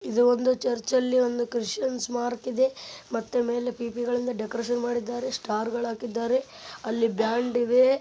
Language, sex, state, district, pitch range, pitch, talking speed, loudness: Kannada, male, Karnataka, Bellary, 235-250 Hz, 240 Hz, 120 wpm, -27 LUFS